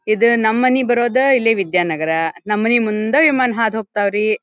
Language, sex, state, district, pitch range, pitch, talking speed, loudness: Kannada, female, Karnataka, Dharwad, 210-240 Hz, 220 Hz, 135 wpm, -16 LUFS